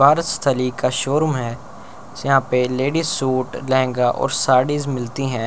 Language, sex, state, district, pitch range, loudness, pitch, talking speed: Hindi, male, Chandigarh, Chandigarh, 125-140 Hz, -19 LUFS, 130 Hz, 140 wpm